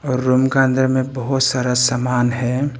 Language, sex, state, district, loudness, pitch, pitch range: Hindi, male, Arunachal Pradesh, Papum Pare, -17 LUFS, 130 Hz, 125-130 Hz